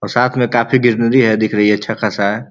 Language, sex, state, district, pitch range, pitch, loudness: Bhojpuri, male, Uttar Pradesh, Ghazipur, 105-120 Hz, 115 Hz, -14 LUFS